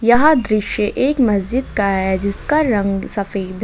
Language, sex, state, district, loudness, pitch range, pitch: Hindi, female, Jharkhand, Ranchi, -17 LUFS, 195-250 Hz, 210 Hz